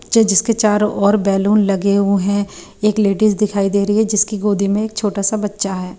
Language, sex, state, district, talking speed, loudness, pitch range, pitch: Hindi, female, Bihar, Katihar, 220 wpm, -16 LUFS, 200-210 Hz, 205 Hz